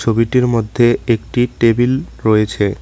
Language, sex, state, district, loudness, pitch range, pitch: Bengali, male, West Bengal, Cooch Behar, -15 LUFS, 110-120 Hz, 115 Hz